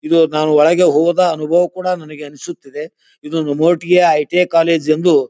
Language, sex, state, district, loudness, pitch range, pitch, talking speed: Kannada, male, Karnataka, Bijapur, -14 LUFS, 155-175 Hz, 165 Hz, 145 wpm